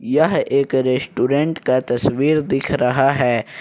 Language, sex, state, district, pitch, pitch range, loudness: Hindi, male, Jharkhand, Ranchi, 135 Hz, 125-140 Hz, -18 LUFS